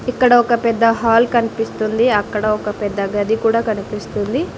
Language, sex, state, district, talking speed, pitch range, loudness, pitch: Telugu, female, Telangana, Mahabubabad, 145 wpm, 210-235 Hz, -17 LUFS, 225 Hz